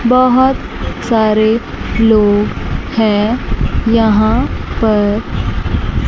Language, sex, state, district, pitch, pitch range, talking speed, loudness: Hindi, female, Chandigarh, Chandigarh, 220 Hz, 215-235 Hz, 60 wpm, -13 LUFS